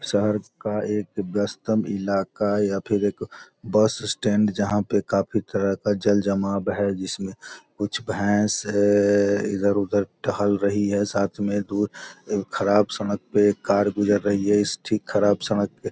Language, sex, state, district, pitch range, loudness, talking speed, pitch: Hindi, male, Bihar, Gopalganj, 100-105 Hz, -23 LUFS, 145 wpm, 100 Hz